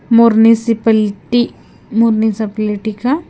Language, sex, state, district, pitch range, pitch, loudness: Hindi, female, Himachal Pradesh, Shimla, 215-230 Hz, 225 Hz, -14 LUFS